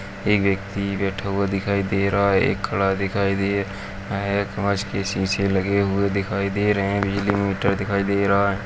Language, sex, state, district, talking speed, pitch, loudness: Kumaoni, male, Uttarakhand, Uttarkashi, 200 wpm, 100 Hz, -22 LUFS